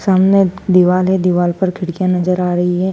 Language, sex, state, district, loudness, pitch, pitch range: Hindi, female, Madhya Pradesh, Dhar, -14 LUFS, 180 Hz, 180-190 Hz